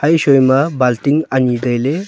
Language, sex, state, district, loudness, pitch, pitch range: Wancho, male, Arunachal Pradesh, Longding, -14 LUFS, 135 Hz, 125-150 Hz